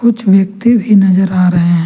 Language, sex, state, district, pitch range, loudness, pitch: Hindi, male, Jharkhand, Ranchi, 185-215 Hz, -10 LUFS, 195 Hz